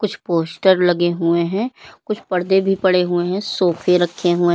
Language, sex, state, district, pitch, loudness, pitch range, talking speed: Hindi, female, Uttar Pradesh, Lalitpur, 180 Hz, -18 LUFS, 175-190 Hz, 195 wpm